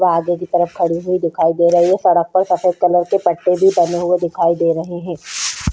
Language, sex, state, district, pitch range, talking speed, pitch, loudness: Hindi, female, Uttarakhand, Tehri Garhwal, 170-180 Hz, 240 wpm, 175 Hz, -16 LUFS